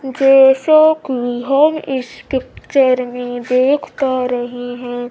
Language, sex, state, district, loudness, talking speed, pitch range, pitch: Hindi, female, Bihar, Kaimur, -15 LUFS, 105 wpm, 245-270 Hz, 260 Hz